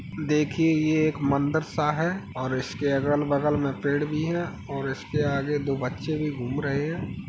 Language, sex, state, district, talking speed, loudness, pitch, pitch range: Hindi, male, Uttar Pradesh, Hamirpur, 190 wpm, -26 LUFS, 145 Hz, 140-155 Hz